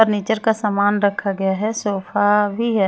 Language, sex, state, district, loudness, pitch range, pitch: Hindi, female, Chhattisgarh, Raipur, -19 LUFS, 200-220 Hz, 205 Hz